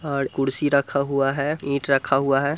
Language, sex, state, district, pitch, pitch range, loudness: Hindi, male, Bihar, Muzaffarpur, 140 Hz, 135-140 Hz, -21 LUFS